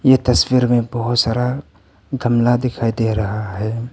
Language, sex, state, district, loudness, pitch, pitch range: Hindi, male, Arunachal Pradesh, Papum Pare, -17 LUFS, 120 Hz, 110-125 Hz